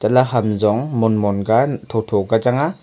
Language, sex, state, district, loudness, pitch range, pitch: Wancho, male, Arunachal Pradesh, Longding, -18 LUFS, 105-125 Hz, 110 Hz